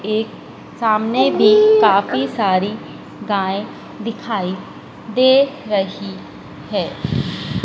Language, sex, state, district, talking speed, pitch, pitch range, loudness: Hindi, female, Madhya Pradesh, Dhar, 80 wpm, 215 Hz, 195-245 Hz, -17 LUFS